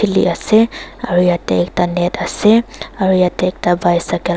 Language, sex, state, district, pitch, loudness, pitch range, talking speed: Nagamese, female, Nagaland, Dimapur, 180 Hz, -15 LUFS, 175-215 Hz, 165 wpm